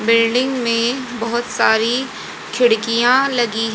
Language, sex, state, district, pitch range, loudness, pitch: Hindi, female, Haryana, Jhajjar, 230-250 Hz, -17 LUFS, 235 Hz